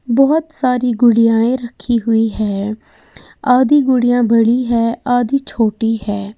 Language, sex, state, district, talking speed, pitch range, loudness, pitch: Hindi, female, Uttar Pradesh, Lalitpur, 120 wpm, 225-250 Hz, -15 LUFS, 235 Hz